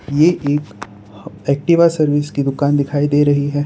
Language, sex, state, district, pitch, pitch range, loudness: Hindi, male, Gujarat, Valsad, 145 Hz, 140-145 Hz, -16 LUFS